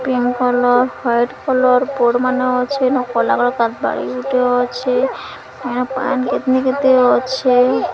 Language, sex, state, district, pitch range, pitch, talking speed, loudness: Odia, female, Odisha, Sambalpur, 245-260 Hz, 250 Hz, 100 wpm, -16 LUFS